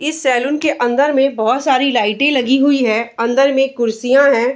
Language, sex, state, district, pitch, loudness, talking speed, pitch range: Hindi, female, Bihar, Araria, 270 Hz, -14 LUFS, 195 wpm, 245-280 Hz